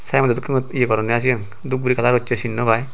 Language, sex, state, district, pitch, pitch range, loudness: Chakma, male, Tripura, Unakoti, 125 Hz, 115-130 Hz, -19 LUFS